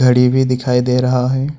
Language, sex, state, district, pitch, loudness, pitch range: Hindi, male, Jharkhand, Ranchi, 125 Hz, -14 LUFS, 125-130 Hz